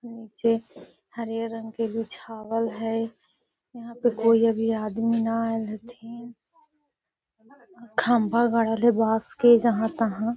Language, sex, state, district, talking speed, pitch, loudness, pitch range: Magahi, female, Bihar, Gaya, 140 wpm, 230 Hz, -24 LUFS, 225-235 Hz